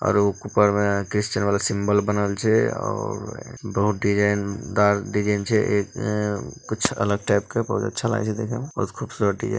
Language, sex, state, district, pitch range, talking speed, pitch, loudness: Hindi, male, Bihar, Bhagalpur, 100-110 Hz, 170 wpm, 105 Hz, -23 LUFS